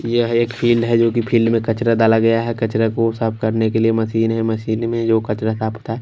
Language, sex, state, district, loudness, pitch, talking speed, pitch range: Hindi, male, Punjab, Kapurthala, -17 LUFS, 115 Hz, 250 wpm, 110-115 Hz